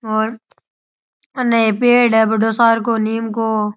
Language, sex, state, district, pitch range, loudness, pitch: Rajasthani, male, Rajasthan, Churu, 220-235 Hz, -15 LUFS, 225 Hz